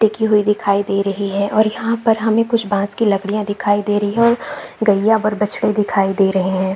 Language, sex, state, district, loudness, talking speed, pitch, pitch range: Hindi, female, Jharkhand, Jamtara, -17 LUFS, 230 wpm, 210 Hz, 200-220 Hz